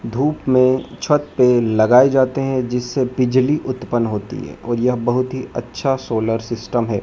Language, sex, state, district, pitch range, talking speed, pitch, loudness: Hindi, male, Madhya Pradesh, Dhar, 120-130 Hz, 170 wpm, 125 Hz, -18 LUFS